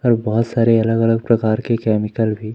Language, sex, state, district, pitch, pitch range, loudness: Hindi, male, Madhya Pradesh, Umaria, 115 Hz, 110-115 Hz, -17 LUFS